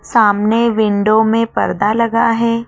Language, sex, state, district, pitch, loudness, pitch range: Hindi, female, Madhya Pradesh, Dhar, 225 Hz, -14 LUFS, 215-230 Hz